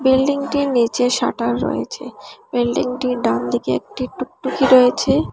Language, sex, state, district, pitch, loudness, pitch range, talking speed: Bengali, female, Assam, Hailakandi, 255 Hz, -18 LUFS, 240-265 Hz, 100 wpm